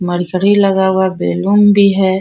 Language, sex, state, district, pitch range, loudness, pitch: Hindi, female, Bihar, Bhagalpur, 185-200 Hz, -12 LUFS, 190 Hz